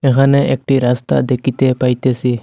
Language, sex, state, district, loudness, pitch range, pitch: Bengali, male, Assam, Hailakandi, -14 LUFS, 125-135 Hz, 130 Hz